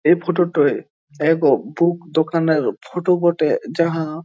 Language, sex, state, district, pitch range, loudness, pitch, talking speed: Bengali, male, West Bengal, Jhargram, 160-175 Hz, -18 LUFS, 165 Hz, 125 wpm